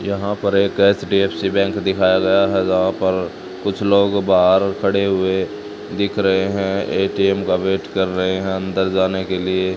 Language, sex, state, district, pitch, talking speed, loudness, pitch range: Hindi, male, Haryana, Charkhi Dadri, 95 Hz, 170 wpm, -18 LUFS, 95-100 Hz